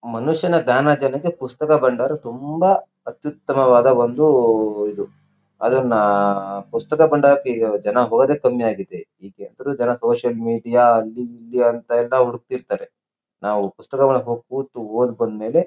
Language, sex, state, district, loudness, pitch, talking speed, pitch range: Kannada, male, Karnataka, Shimoga, -18 LUFS, 125 Hz, 105 wpm, 115-145 Hz